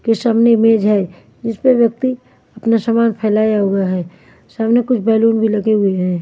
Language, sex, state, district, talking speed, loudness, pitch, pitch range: Hindi, female, Maharashtra, Mumbai Suburban, 185 wpm, -15 LUFS, 225 Hz, 210-230 Hz